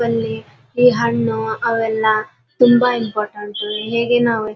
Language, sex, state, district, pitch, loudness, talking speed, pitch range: Kannada, female, Karnataka, Dharwad, 220 Hz, -17 LUFS, 120 wpm, 210-235 Hz